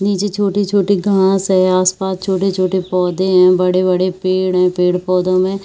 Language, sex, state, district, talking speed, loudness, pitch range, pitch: Hindi, female, Chhattisgarh, Bilaspur, 150 wpm, -14 LUFS, 185-195 Hz, 185 Hz